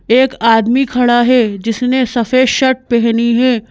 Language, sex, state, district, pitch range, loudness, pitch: Hindi, female, Madhya Pradesh, Bhopal, 230-255 Hz, -12 LUFS, 245 Hz